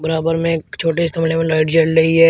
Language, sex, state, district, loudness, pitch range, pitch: Hindi, male, Uttar Pradesh, Shamli, -16 LUFS, 160-165 Hz, 165 Hz